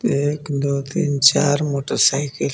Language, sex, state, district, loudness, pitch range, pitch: Hindi, male, Jharkhand, Garhwa, -18 LUFS, 140-145 Hz, 140 Hz